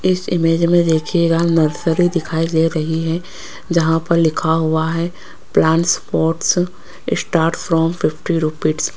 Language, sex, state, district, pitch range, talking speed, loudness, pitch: Hindi, female, Rajasthan, Jaipur, 160-170 Hz, 135 wpm, -17 LUFS, 165 Hz